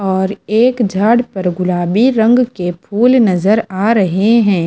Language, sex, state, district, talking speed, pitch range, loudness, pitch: Hindi, female, Bihar, Kaimur, 155 wpm, 190-230 Hz, -13 LUFS, 205 Hz